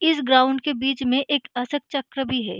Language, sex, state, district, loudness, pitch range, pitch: Hindi, female, Bihar, Begusarai, -22 LUFS, 255-285 Hz, 270 Hz